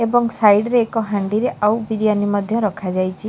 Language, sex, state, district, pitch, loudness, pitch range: Odia, female, Odisha, Khordha, 215 Hz, -18 LUFS, 205-230 Hz